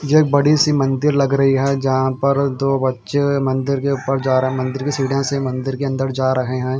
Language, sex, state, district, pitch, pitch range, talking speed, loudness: Hindi, male, Haryana, Jhajjar, 135 Hz, 130-140 Hz, 240 wpm, -18 LUFS